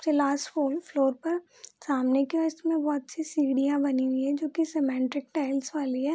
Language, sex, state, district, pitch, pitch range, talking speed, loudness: Hindi, female, Bihar, Purnia, 285 Hz, 270-315 Hz, 195 wpm, -28 LUFS